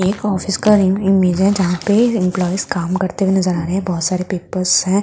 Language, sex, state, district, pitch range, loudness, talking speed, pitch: Hindi, female, Delhi, New Delhi, 180-195 Hz, -16 LUFS, 225 wpm, 190 Hz